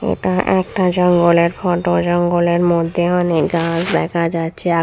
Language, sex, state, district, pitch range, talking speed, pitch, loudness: Bengali, female, West Bengal, Purulia, 170-175 Hz, 135 wpm, 175 Hz, -16 LUFS